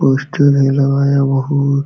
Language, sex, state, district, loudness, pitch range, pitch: Hindi, male, Uttar Pradesh, Jalaun, -13 LUFS, 135-140 Hz, 140 Hz